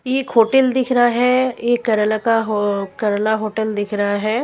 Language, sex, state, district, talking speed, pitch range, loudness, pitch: Hindi, female, Punjab, Kapurthala, 190 wpm, 210-250 Hz, -17 LUFS, 220 Hz